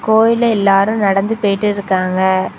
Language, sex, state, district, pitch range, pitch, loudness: Tamil, female, Tamil Nadu, Kanyakumari, 190-220 Hz, 200 Hz, -14 LUFS